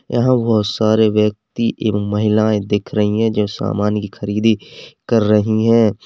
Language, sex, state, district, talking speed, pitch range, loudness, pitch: Hindi, male, Uttar Pradesh, Lalitpur, 160 wpm, 105-110 Hz, -16 LUFS, 105 Hz